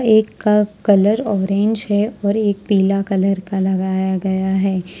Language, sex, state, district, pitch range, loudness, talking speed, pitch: Hindi, female, Jharkhand, Ranchi, 190-210 Hz, -17 LUFS, 155 wpm, 200 Hz